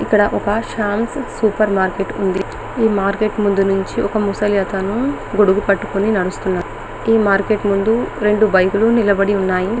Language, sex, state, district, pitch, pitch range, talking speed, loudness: Telugu, female, Telangana, Karimnagar, 205 Hz, 195-215 Hz, 155 wpm, -17 LUFS